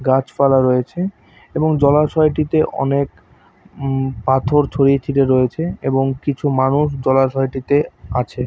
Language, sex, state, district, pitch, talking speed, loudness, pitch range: Bengali, male, West Bengal, Paschim Medinipur, 135 Hz, 120 wpm, -17 LUFS, 130-150 Hz